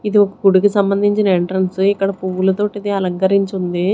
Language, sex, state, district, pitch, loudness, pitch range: Telugu, female, Andhra Pradesh, Sri Satya Sai, 195 Hz, -16 LUFS, 190-205 Hz